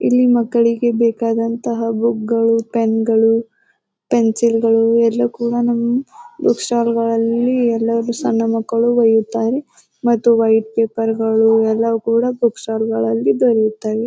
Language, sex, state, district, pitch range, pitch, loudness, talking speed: Kannada, female, Karnataka, Bijapur, 225-235 Hz, 230 Hz, -16 LUFS, 100 wpm